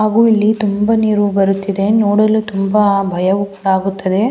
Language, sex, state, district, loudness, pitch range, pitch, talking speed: Kannada, female, Karnataka, Mysore, -14 LUFS, 195-215 Hz, 205 Hz, 140 wpm